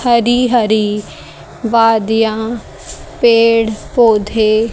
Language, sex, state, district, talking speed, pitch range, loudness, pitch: Hindi, female, Haryana, Jhajjar, 65 wpm, 220-235 Hz, -13 LUFS, 225 Hz